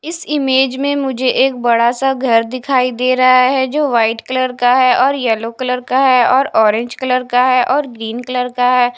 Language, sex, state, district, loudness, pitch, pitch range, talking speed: Hindi, female, Punjab, Fazilka, -14 LUFS, 255 Hz, 245-265 Hz, 215 wpm